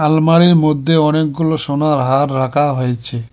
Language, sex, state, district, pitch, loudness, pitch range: Bengali, male, West Bengal, Cooch Behar, 150 Hz, -14 LUFS, 135-155 Hz